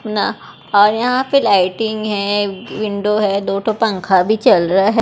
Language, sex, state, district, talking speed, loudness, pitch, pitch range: Hindi, female, Maharashtra, Gondia, 180 wpm, -15 LUFS, 210 Hz, 195-220 Hz